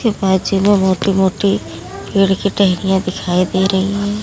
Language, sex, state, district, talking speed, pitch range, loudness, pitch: Hindi, female, Uttar Pradesh, Lalitpur, 155 wpm, 190-200 Hz, -15 LUFS, 195 Hz